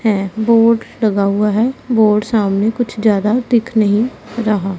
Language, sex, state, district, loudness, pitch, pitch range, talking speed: Hindi, female, Punjab, Pathankot, -15 LUFS, 220 Hz, 210-230 Hz, 150 wpm